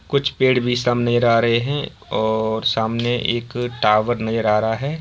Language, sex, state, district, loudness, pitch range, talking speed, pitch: Hindi, male, Bihar, Bhagalpur, -19 LUFS, 110-125 Hz, 180 wpm, 120 Hz